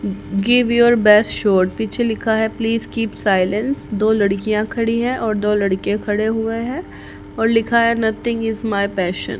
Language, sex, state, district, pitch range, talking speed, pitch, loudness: Hindi, female, Haryana, Charkhi Dadri, 205-230 Hz, 180 wpm, 220 Hz, -18 LUFS